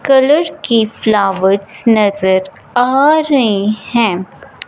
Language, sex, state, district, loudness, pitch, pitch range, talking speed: Hindi, male, Punjab, Fazilka, -13 LUFS, 220 Hz, 195-270 Hz, 90 wpm